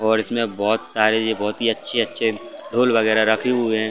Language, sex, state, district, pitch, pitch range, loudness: Hindi, male, Chhattisgarh, Bastar, 110 Hz, 110-115 Hz, -20 LUFS